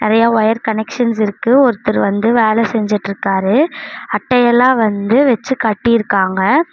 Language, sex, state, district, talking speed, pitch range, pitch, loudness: Tamil, female, Tamil Nadu, Namakkal, 115 wpm, 210-250 Hz, 225 Hz, -14 LUFS